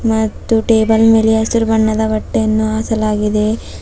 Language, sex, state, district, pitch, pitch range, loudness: Kannada, female, Karnataka, Bidar, 220 Hz, 220-225 Hz, -14 LUFS